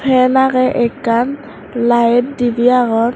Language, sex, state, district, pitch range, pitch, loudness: Chakma, female, Tripura, West Tripura, 235-260 Hz, 245 Hz, -14 LUFS